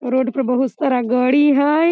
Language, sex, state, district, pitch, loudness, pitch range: Maithili, female, Bihar, Samastipur, 260 Hz, -17 LUFS, 250-285 Hz